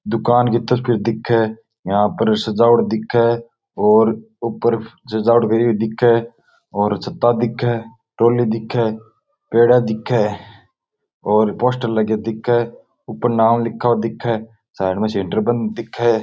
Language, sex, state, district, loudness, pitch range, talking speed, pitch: Rajasthani, male, Rajasthan, Nagaur, -17 LUFS, 110-120 Hz, 130 wpm, 115 Hz